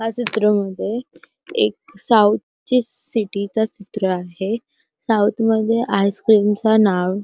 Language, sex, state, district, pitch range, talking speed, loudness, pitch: Marathi, female, Maharashtra, Sindhudurg, 200-225 Hz, 115 wpm, -19 LUFS, 215 Hz